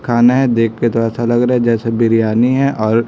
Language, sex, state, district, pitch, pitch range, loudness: Hindi, male, Chhattisgarh, Raipur, 115 Hz, 115-120 Hz, -14 LUFS